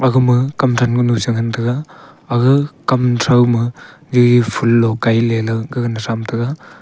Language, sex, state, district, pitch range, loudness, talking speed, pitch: Wancho, male, Arunachal Pradesh, Longding, 115-130 Hz, -15 LUFS, 140 wpm, 120 Hz